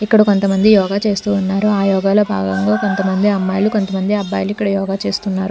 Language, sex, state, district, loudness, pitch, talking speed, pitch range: Telugu, female, Telangana, Hyderabad, -15 LUFS, 195 Hz, 175 wpm, 195-205 Hz